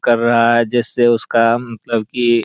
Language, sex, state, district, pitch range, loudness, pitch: Maithili, male, Bihar, Araria, 115-120 Hz, -15 LUFS, 120 Hz